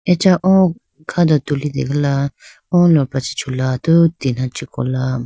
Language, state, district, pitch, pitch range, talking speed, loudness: Idu Mishmi, Arunachal Pradesh, Lower Dibang Valley, 145 Hz, 130-170 Hz, 150 wpm, -16 LUFS